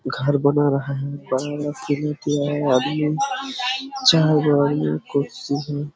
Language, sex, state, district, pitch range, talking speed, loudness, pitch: Hindi, male, Jharkhand, Sahebganj, 140-150 Hz, 80 wpm, -21 LUFS, 145 Hz